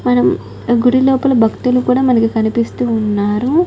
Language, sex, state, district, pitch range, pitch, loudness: Telugu, female, Telangana, Nalgonda, 225-255 Hz, 245 Hz, -14 LUFS